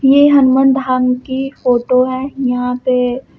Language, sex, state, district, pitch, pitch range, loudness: Hindi, female, Uttar Pradesh, Lucknow, 255 Hz, 250-270 Hz, -13 LUFS